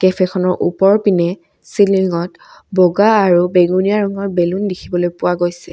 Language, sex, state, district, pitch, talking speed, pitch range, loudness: Assamese, female, Assam, Kamrup Metropolitan, 185 Hz, 135 wpm, 175-195 Hz, -15 LUFS